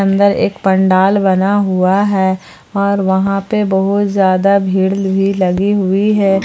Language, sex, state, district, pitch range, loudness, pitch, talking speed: Hindi, female, Jharkhand, Palamu, 190-200 Hz, -13 LUFS, 195 Hz, 150 wpm